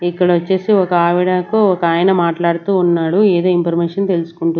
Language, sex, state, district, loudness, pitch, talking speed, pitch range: Telugu, female, Andhra Pradesh, Sri Satya Sai, -14 LUFS, 175 Hz, 145 wpm, 170-190 Hz